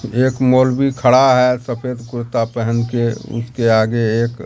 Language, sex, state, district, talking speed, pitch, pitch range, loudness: Hindi, male, Bihar, Katihar, 150 wpm, 120 Hz, 115-125 Hz, -16 LUFS